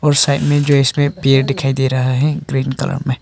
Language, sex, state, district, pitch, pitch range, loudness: Hindi, male, Arunachal Pradesh, Papum Pare, 140 Hz, 135-145 Hz, -15 LUFS